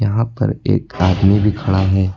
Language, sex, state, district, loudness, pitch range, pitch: Hindi, male, Uttar Pradesh, Lucknow, -16 LUFS, 95-120 Hz, 105 Hz